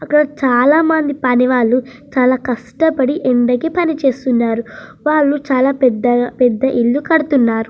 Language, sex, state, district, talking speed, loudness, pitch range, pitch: Telugu, female, Andhra Pradesh, Srikakulam, 95 wpm, -14 LUFS, 245-295 Hz, 260 Hz